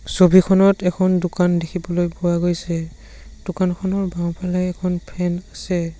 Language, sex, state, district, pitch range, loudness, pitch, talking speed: Assamese, male, Assam, Sonitpur, 175-185 Hz, -19 LUFS, 180 Hz, 110 wpm